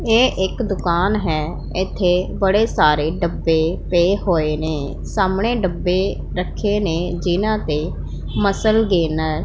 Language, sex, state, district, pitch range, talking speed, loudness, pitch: Punjabi, female, Punjab, Pathankot, 160-200 Hz, 125 wpm, -19 LUFS, 180 Hz